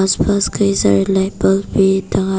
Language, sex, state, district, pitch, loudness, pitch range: Hindi, female, Arunachal Pradesh, Papum Pare, 195 Hz, -15 LUFS, 190-195 Hz